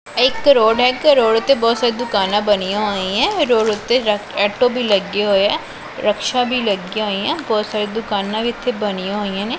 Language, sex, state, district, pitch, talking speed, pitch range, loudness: Punjabi, female, Punjab, Pathankot, 215 Hz, 200 wpm, 205-245 Hz, -17 LUFS